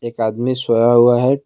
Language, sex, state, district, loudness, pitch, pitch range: Hindi, male, Assam, Kamrup Metropolitan, -15 LUFS, 120 Hz, 115-125 Hz